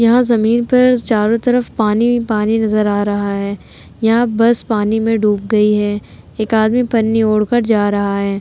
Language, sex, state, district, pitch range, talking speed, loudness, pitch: Hindi, female, Uttar Pradesh, Jalaun, 210-235 Hz, 195 wpm, -14 LUFS, 220 Hz